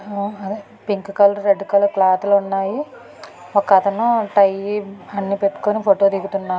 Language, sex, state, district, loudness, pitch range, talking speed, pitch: Telugu, female, Andhra Pradesh, Anantapur, -18 LUFS, 195-205 Hz, 125 wpm, 200 Hz